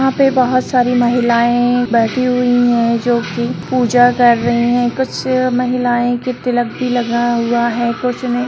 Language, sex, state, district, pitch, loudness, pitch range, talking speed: Hindi, female, Bihar, Sitamarhi, 245 Hz, -14 LUFS, 240-250 Hz, 170 wpm